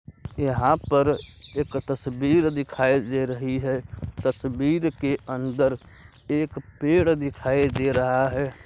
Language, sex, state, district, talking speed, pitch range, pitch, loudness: Hindi, male, Uttar Pradesh, Varanasi, 120 wpm, 130-140 Hz, 135 Hz, -24 LUFS